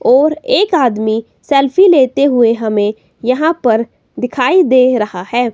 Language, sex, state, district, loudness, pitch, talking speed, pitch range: Hindi, female, Himachal Pradesh, Shimla, -12 LUFS, 255 Hz, 140 wpm, 225-305 Hz